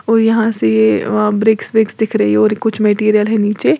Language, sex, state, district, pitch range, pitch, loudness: Hindi, female, Uttar Pradesh, Lalitpur, 210-220 Hz, 215 Hz, -13 LUFS